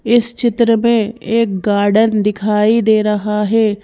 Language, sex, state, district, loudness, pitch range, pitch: Hindi, female, Madhya Pradesh, Bhopal, -14 LUFS, 210-230 Hz, 220 Hz